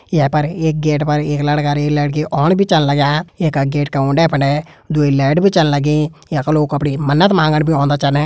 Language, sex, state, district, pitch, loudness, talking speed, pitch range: Hindi, male, Uttarakhand, Tehri Garhwal, 150 Hz, -15 LUFS, 220 wpm, 145-160 Hz